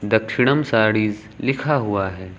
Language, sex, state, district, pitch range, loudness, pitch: Hindi, male, Uttar Pradesh, Lucknow, 105-130 Hz, -20 LUFS, 110 Hz